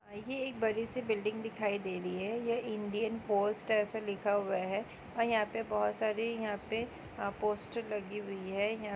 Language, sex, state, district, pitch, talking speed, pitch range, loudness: Hindi, female, Andhra Pradesh, Krishna, 215 Hz, 160 wpm, 205-225 Hz, -35 LUFS